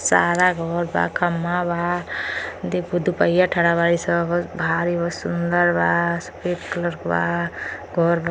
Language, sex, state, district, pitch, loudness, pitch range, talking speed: Bhojpuri, female, Uttar Pradesh, Gorakhpur, 170 Hz, -21 LUFS, 170-175 Hz, 145 wpm